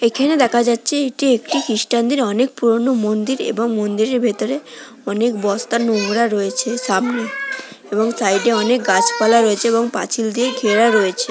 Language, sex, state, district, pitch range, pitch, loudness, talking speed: Bengali, female, West Bengal, Dakshin Dinajpur, 215-245 Hz, 235 Hz, -17 LUFS, 150 wpm